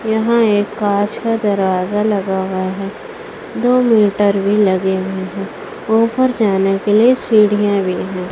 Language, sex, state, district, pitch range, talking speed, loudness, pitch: Hindi, female, Chhattisgarh, Raipur, 195-225 Hz, 150 wpm, -15 LUFS, 205 Hz